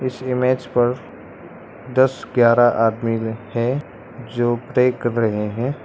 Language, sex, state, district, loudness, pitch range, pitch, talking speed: Hindi, male, Arunachal Pradesh, Lower Dibang Valley, -19 LUFS, 115-125 Hz, 120 Hz, 125 wpm